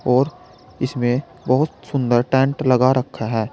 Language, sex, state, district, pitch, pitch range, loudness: Hindi, male, Uttar Pradesh, Saharanpur, 130 Hz, 120-135 Hz, -19 LUFS